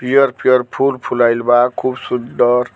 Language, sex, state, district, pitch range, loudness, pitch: Bhojpuri, male, Bihar, Muzaffarpur, 120-130 Hz, -15 LUFS, 125 Hz